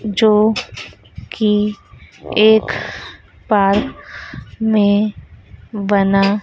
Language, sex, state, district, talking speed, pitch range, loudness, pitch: Hindi, female, Madhya Pradesh, Dhar, 55 wpm, 195-215 Hz, -16 LUFS, 205 Hz